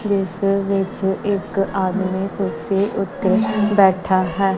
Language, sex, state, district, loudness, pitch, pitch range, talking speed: Punjabi, female, Punjab, Kapurthala, -19 LUFS, 195 Hz, 190-200 Hz, 105 wpm